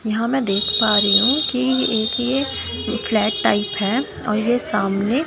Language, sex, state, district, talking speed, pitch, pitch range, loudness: Hindi, female, Haryana, Jhajjar, 170 wpm, 220 Hz, 210-255 Hz, -17 LUFS